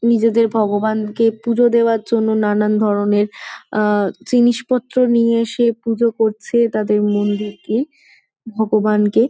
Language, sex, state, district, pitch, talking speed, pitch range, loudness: Bengali, female, West Bengal, Malda, 225 Hz, 95 wpm, 210-235 Hz, -17 LUFS